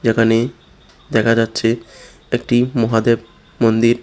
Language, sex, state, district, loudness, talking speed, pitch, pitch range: Bengali, male, Tripura, West Tripura, -17 LUFS, 90 wpm, 115 Hz, 115-120 Hz